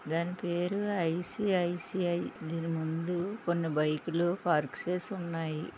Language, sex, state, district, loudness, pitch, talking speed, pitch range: Telugu, female, Andhra Pradesh, Visakhapatnam, -32 LUFS, 175 Hz, 115 wpm, 165-180 Hz